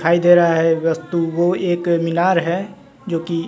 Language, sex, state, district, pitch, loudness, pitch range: Hindi, male, Bihar, West Champaran, 170 Hz, -17 LUFS, 165-175 Hz